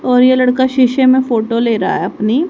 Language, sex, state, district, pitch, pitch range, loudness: Hindi, female, Haryana, Jhajjar, 250 Hz, 230-260 Hz, -13 LUFS